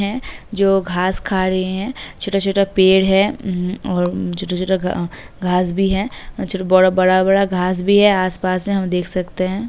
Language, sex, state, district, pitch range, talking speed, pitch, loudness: Hindi, female, Uttar Pradesh, Jalaun, 185-195 Hz, 180 wpm, 185 Hz, -17 LUFS